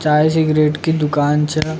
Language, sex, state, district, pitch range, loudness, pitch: Rajasthani, male, Rajasthan, Nagaur, 150-155 Hz, -16 LUFS, 155 Hz